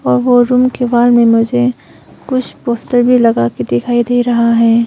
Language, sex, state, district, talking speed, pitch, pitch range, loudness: Hindi, female, Arunachal Pradesh, Longding, 195 wpm, 240 Hz, 230-245 Hz, -12 LUFS